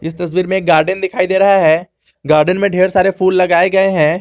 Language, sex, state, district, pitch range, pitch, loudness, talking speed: Hindi, male, Jharkhand, Garhwa, 170-190 Hz, 185 Hz, -13 LUFS, 240 wpm